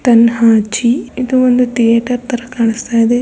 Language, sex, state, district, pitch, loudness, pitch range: Kannada, female, Karnataka, Raichur, 235 Hz, -13 LUFS, 230-250 Hz